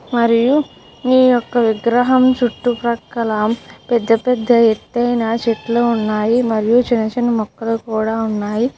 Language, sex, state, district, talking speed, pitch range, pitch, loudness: Telugu, female, Andhra Pradesh, Krishna, 110 wpm, 225-245 Hz, 235 Hz, -16 LUFS